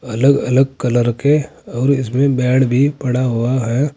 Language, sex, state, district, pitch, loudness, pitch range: Hindi, male, Uttar Pradesh, Saharanpur, 130 Hz, -16 LUFS, 125-140 Hz